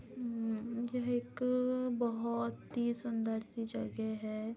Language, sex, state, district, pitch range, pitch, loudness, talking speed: Hindi, female, Bihar, Gopalganj, 225-245 Hz, 235 Hz, -37 LUFS, 120 wpm